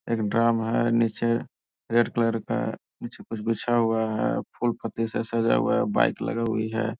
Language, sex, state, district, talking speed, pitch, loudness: Hindi, male, Bihar, Jahanabad, 180 wpm, 115 Hz, -25 LUFS